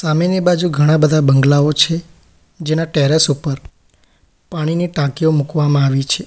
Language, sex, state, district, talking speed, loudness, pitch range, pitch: Gujarati, male, Gujarat, Valsad, 135 wpm, -15 LUFS, 145-165 Hz, 155 Hz